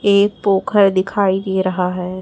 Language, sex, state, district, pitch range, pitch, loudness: Hindi, female, Chhattisgarh, Raipur, 185-200 Hz, 190 Hz, -16 LUFS